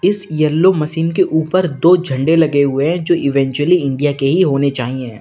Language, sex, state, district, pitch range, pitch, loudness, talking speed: Hindi, male, Uttar Pradesh, Lalitpur, 140-175 Hz, 155 Hz, -14 LUFS, 195 wpm